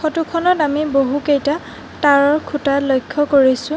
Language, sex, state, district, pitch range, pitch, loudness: Assamese, female, Assam, Sonitpur, 280-310 Hz, 290 Hz, -16 LUFS